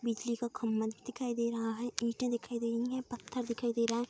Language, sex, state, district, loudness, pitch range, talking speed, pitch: Hindi, female, Bihar, Vaishali, -36 LUFS, 230-245 Hz, 250 wpm, 235 Hz